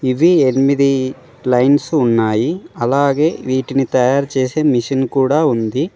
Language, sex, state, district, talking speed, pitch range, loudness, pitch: Telugu, male, Telangana, Mahabubabad, 110 wpm, 130-140 Hz, -15 LUFS, 135 Hz